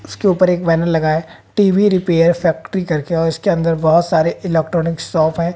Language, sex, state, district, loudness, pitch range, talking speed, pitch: Hindi, female, Haryana, Jhajjar, -16 LUFS, 160-180 Hz, 195 wpm, 170 Hz